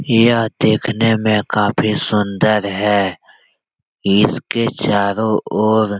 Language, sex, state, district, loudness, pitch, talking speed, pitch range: Hindi, male, Bihar, Jahanabad, -16 LUFS, 110 Hz, 100 wpm, 100-110 Hz